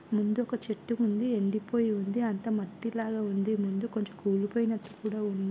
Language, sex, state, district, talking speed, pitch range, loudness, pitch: Telugu, female, Telangana, Nalgonda, 185 wpm, 205-230 Hz, -31 LUFS, 215 Hz